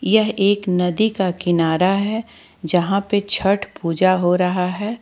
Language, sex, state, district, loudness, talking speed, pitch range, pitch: Hindi, female, Jharkhand, Ranchi, -18 LUFS, 155 wpm, 180-205 Hz, 190 Hz